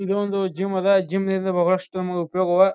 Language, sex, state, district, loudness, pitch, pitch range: Kannada, male, Karnataka, Bijapur, -22 LUFS, 190 Hz, 185-195 Hz